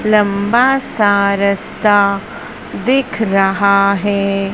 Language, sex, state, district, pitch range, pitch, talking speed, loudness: Hindi, male, Madhya Pradesh, Dhar, 200-215 Hz, 200 Hz, 80 wpm, -14 LUFS